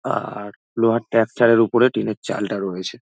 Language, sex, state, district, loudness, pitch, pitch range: Bengali, male, West Bengal, Dakshin Dinajpur, -19 LUFS, 115 Hz, 100-115 Hz